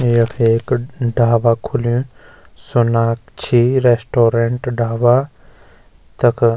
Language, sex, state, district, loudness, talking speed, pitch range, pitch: Garhwali, male, Uttarakhand, Uttarkashi, -16 LUFS, 80 wpm, 115-125 Hz, 120 Hz